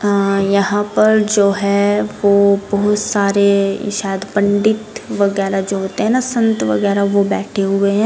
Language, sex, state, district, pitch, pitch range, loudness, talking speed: Hindi, female, Bihar, Gopalganj, 200 Hz, 200-210 Hz, -15 LUFS, 155 wpm